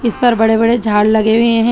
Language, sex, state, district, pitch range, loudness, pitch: Hindi, female, Telangana, Hyderabad, 220-235 Hz, -12 LUFS, 225 Hz